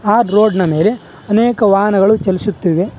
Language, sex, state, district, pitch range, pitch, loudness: Kannada, male, Karnataka, Bangalore, 190-215 Hz, 205 Hz, -13 LUFS